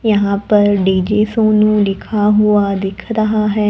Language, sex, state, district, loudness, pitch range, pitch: Hindi, female, Maharashtra, Gondia, -14 LUFS, 200-215 Hz, 210 Hz